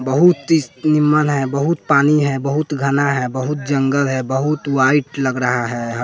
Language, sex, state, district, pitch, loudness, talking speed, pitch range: Hindi, male, Bihar, West Champaran, 140 Hz, -17 LUFS, 180 wpm, 130-150 Hz